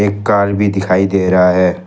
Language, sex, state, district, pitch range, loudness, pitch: Hindi, male, Jharkhand, Ranchi, 90-100 Hz, -13 LUFS, 95 Hz